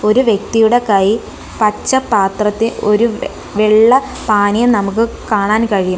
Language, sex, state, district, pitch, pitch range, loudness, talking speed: Malayalam, female, Kerala, Kollam, 215 Hz, 205-230 Hz, -13 LUFS, 120 wpm